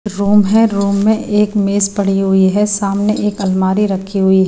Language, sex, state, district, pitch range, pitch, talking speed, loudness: Hindi, female, Himachal Pradesh, Shimla, 195-210 Hz, 200 Hz, 185 wpm, -14 LUFS